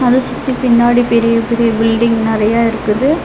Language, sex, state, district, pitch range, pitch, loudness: Tamil, female, Tamil Nadu, Nilgiris, 225-245 Hz, 235 Hz, -13 LUFS